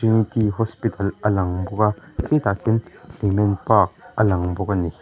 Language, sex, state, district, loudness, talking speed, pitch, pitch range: Mizo, male, Mizoram, Aizawl, -21 LUFS, 190 wpm, 105 Hz, 95-110 Hz